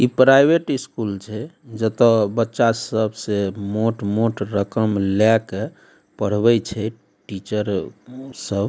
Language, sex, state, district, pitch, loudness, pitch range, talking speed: Maithili, male, Bihar, Darbhanga, 110 Hz, -20 LUFS, 105-115 Hz, 115 wpm